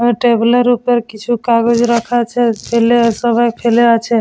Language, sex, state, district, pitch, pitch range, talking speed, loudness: Bengali, female, West Bengal, Dakshin Dinajpur, 235 Hz, 230-240 Hz, 170 wpm, -13 LUFS